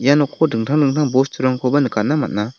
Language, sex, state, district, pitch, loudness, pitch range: Garo, male, Meghalaya, West Garo Hills, 135 Hz, -17 LUFS, 125-145 Hz